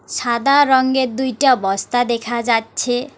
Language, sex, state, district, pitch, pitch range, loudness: Bengali, female, West Bengal, Alipurduar, 245 Hz, 235-265 Hz, -17 LUFS